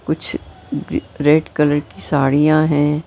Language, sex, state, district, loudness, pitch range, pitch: Hindi, female, Maharashtra, Mumbai Suburban, -17 LUFS, 145-150 Hz, 145 Hz